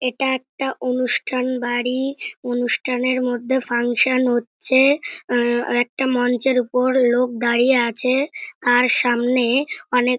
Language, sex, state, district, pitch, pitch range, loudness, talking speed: Bengali, male, West Bengal, North 24 Parganas, 250 Hz, 245-260 Hz, -19 LUFS, 110 wpm